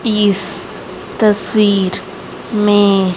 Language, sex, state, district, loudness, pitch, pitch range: Hindi, female, Haryana, Rohtak, -14 LUFS, 205 Hz, 195-210 Hz